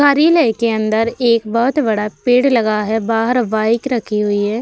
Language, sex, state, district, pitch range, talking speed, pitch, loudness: Hindi, female, Uttar Pradesh, Budaun, 215-245 Hz, 180 wpm, 230 Hz, -15 LUFS